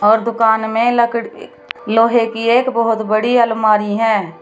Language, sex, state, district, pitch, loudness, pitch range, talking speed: Hindi, female, Uttar Pradesh, Shamli, 225 Hz, -15 LUFS, 220-235 Hz, 150 wpm